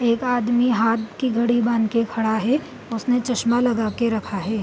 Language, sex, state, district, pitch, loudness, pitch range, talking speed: Hindi, female, Bihar, Gopalganj, 235 Hz, -21 LUFS, 220-245 Hz, 180 wpm